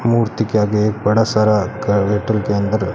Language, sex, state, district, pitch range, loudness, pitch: Hindi, male, Rajasthan, Bikaner, 105-110 Hz, -17 LUFS, 105 Hz